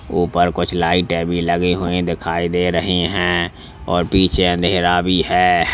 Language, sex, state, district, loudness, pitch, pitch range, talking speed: Hindi, male, Uttar Pradesh, Lalitpur, -17 LUFS, 90 Hz, 85-90 Hz, 155 wpm